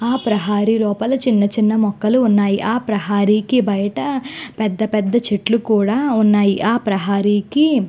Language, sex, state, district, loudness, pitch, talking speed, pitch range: Telugu, female, Andhra Pradesh, Guntur, -17 LUFS, 215 Hz, 130 wpm, 205-235 Hz